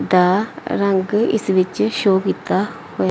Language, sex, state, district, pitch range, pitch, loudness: Punjabi, female, Punjab, Pathankot, 180-210 Hz, 190 Hz, -18 LUFS